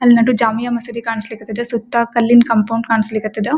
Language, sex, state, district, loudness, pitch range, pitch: Kannada, female, Karnataka, Gulbarga, -16 LUFS, 225-235 Hz, 230 Hz